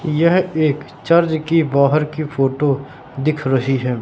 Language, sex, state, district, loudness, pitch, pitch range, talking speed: Hindi, male, Madhya Pradesh, Katni, -17 LUFS, 150 Hz, 135-160 Hz, 150 wpm